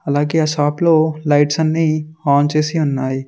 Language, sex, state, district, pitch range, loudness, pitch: Telugu, male, Telangana, Mahabubabad, 145-160 Hz, -16 LUFS, 155 Hz